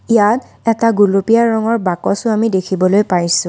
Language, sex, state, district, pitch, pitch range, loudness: Assamese, female, Assam, Kamrup Metropolitan, 210 Hz, 190-230 Hz, -14 LUFS